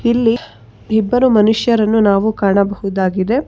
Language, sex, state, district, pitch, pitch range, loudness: Kannada, female, Karnataka, Bangalore, 220 Hz, 200-235 Hz, -14 LUFS